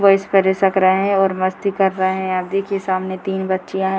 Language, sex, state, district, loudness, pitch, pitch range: Hindi, female, Bihar, Purnia, -18 LUFS, 190 Hz, 185-195 Hz